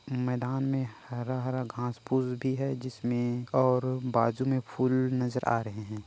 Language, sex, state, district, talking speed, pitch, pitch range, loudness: Chhattisgarhi, male, Chhattisgarh, Korba, 160 wpm, 125 Hz, 120-130 Hz, -30 LUFS